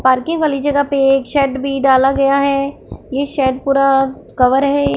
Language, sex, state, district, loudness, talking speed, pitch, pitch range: Hindi, female, Punjab, Fazilka, -15 LUFS, 180 wpm, 275 Hz, 265-280 Hz